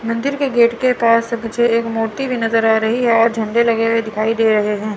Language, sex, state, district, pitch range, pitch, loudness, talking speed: Hindi, female, Chandigarh, Chandigarh, 225-235 Hz, 230 Hz, -16 LUFS, 255 wpm